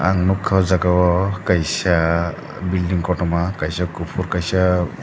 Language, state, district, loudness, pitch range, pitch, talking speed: Kokborok, Tripura, Dhalai, -19 LUFS, 85-95 Hz, 90 Hz, 130 wpm